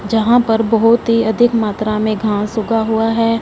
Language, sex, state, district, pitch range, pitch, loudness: Hindi, female, Punjab, Fazilka, 215-230 Hz, 225 Hz, -15 LUFS